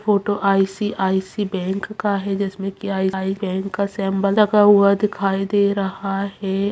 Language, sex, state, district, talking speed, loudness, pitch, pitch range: Hindi, female, Bihar, Purnia, 160 wpm, -20 LUFS, 195 Hz, 195-205 Hz